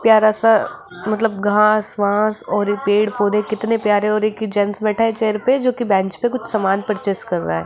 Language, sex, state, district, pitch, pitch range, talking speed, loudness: Hindi, female, Rajasthan, Jaipur, 215 Hz, 205-220 Hz, 220 wpm, -17 LUFS